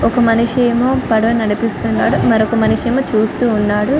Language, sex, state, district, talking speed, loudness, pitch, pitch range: Telugu, female, Telangana, Karimnagar, 135 wpm, -14 LUFS, 230 Hz, 215-240 Hz